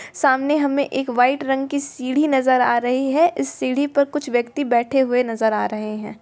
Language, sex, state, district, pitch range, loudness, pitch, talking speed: Hindi, female, Bihar, East Champaran, 240-280 Hz, -19 LUFS, 265 Hz, 210 wpm